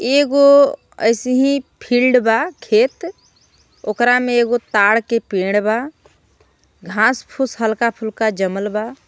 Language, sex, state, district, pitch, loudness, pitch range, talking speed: Bhojpuri, female, Jharkhand, Palamu, 235 Hz, -16 LUFS, 220-270 Hz, 120 wpm